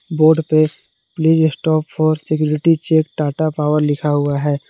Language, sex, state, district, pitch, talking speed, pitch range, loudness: Hindi, male, Jharkhand, Palamu, 155 Hz, 155 wpm, 150-160 Hz, -16 LUFS